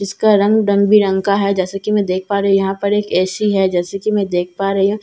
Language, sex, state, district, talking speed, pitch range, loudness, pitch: Hindi, female, Bihar, Katihar, 285 wpm, 190-205 Hz, -15 LUFS, 200 Hz